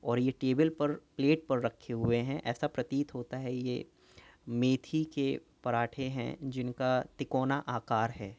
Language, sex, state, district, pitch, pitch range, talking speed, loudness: Hindi, male, Uttar Pradesh, Jyotiba Phule Nagar, 130 Hz, 120-140 Hz, 155 wpm, -33 LUFS